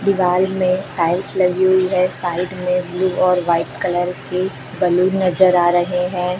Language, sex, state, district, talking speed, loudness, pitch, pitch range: Hindi, female, Chhattisgarh, Raipur, 170 wpm, -17 LUFS, 180 Hz, 175-185 Hz